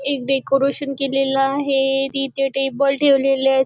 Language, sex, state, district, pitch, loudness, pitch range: Marathi, female, Maharashtra, Chandrapur, 275 Hz, -18 LUFS, 270-275 Hz